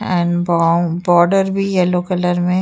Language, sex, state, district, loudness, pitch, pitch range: Hindi, female, Uttar Pradesh, Jyotiba Phule Nagar, -15 LUFS, 175 Hz, 175-185 Hz